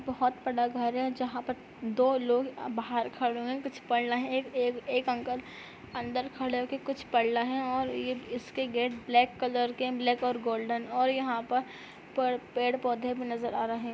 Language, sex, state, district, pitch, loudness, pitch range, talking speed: Hindi, female, Uttar Pradesh, Budaun, 250 Hz, -31 LUFS, 240-255 Hz, 200 wpm